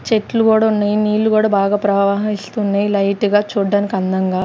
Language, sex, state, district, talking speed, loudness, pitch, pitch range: Telugu, female, Andhra Pradesh, Sri Satya Sai, 150 wpm, -16 LUFS, 205 Hz, 200-215 Hz